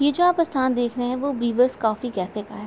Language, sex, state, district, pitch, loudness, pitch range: Hindi, female, Uttar Pradesh, Gorakhpur, 245 Hz, -22 LUFS, 235-280 Hz